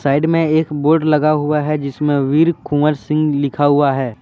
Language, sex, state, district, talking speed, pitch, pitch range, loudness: Hindi, male, Jharkhand, Deoghar, 200 wpm, 150 Hz, 145-155 Hz, -15 LUFS